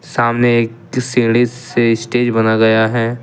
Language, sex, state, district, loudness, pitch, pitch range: Hindi, male, Jharkhand, Ranchi, -14 LUFS, 120 Hz, 115-120 Hz